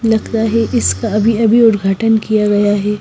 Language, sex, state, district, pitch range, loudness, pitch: Hindi, female, Himachal Pradesh, Shimla, 210-225 Hz, -13 LUFS, 220 Hz